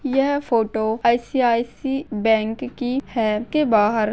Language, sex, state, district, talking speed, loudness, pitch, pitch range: Hindi, female, Maharashtra, Solapur, 115 wpm, -21 LUFS, 235 Hz, 220-265 Hz